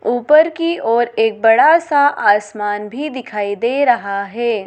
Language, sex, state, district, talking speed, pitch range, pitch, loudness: Hindi, female, Madhya Pradesh, Dhar, 155 wpm, 210-285 Hz, 235 Hz, -15 LUFS